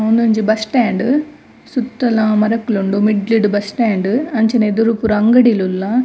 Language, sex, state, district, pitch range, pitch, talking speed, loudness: Tulu, female, Karnataka, Dakshina Kannada, 210-235 Hz, 225 Hz, 140 wpm, -15 LUFS